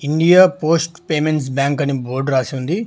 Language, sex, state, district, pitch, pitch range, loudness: Telugu, male, Telangana, Hyderabad, 150 Hz, 135-165 Hz, -16 LUFS